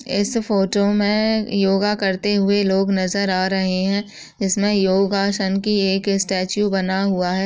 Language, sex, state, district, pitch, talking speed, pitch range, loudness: Hindi, female, Bihar, Begusarai, 195 Hz, 155 wpm, 190-205 Hz, -19 LUFS